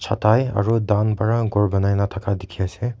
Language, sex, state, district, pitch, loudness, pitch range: Nagamese, male, Nagaland, Kohima, 105 Hz, -20 LUFS, 100-115 Hz